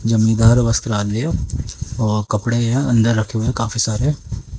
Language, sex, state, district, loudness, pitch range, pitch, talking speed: Hindi, female, Haryana, Jhajjar, -18 LUFS, 110-120 Hz, 115 Hz, 145 wpm